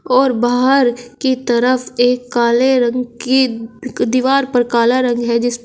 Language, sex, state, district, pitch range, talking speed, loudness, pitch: Hindi, female, Uttar Pradesh, Shamli, 240-255 Hz, 160 wpm, -15 LUFS, 245 Hz